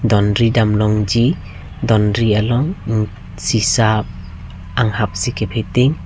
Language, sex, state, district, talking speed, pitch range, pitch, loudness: Karbi, male, Assam, Karbi Anglong, 120 wpm, 100-115 Hz, 110 Hz, -16 LUFS